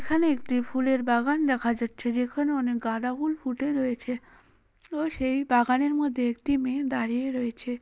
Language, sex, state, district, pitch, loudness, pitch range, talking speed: Bengali, female, West Bengal, Paschim Medinipur, 260 Hz, -27 LUFS, 245-280 Hz, 155 wpm